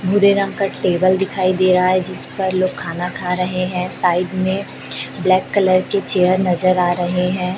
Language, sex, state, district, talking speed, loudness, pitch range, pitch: Hindi, female, Chhattisgarh, Raipur, 200 wpm, -17 LUFS, 180-190 Hz, 185 Hz